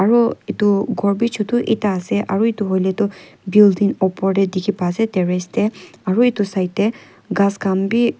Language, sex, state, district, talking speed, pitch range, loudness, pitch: Nagamese, female, Nagaland, Kohima, 185 wpm, 190-215 Hz, -18 LUFS, 200 Hz